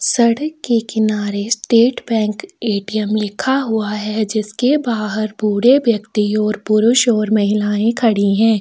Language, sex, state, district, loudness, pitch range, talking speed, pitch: Hindi, female, Chhattisgarh, Sukma, -16 LUFS, 210-235 Hz, 130 wpm, 220 Hz